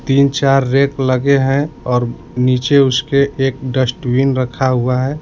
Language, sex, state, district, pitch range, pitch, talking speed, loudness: Hindi, male, Bihar, Kaimur, 130-140 Hz, 135 Hz, 150 wpm, -15 LUFS